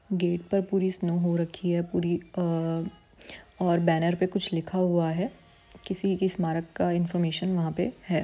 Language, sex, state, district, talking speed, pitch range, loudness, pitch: Hindi, female, Uttarakhand, Tehri Garhwal, 175 wpm, 170-185 Hz, -28 LUFS, 175 Hz